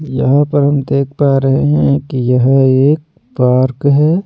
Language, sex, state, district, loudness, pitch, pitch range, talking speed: Hindi, male, Delhi, New Delhi, -12 LUFS, 140 Hz, 130-145 Hz, 170 wpm